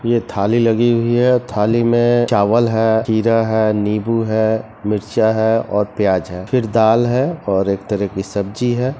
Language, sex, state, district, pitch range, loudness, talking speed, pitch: Hindi, male, Chhattisgarh, Rajnandgaon, 105-120 Hz, -16 LUFS, 185 wpm, 110 Hz